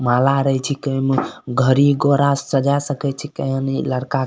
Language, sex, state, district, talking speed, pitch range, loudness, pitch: Maithili, male, Bihar, Supaul, 170 wpm, 135-140 Hz, -18 LUFS, 135 Hz